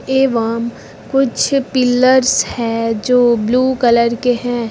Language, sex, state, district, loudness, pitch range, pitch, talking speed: Hindi, female, Uttar Pradesh, Lucknow, -14 LUFS, 235-260 Hz, 245 Hz, 115 wpm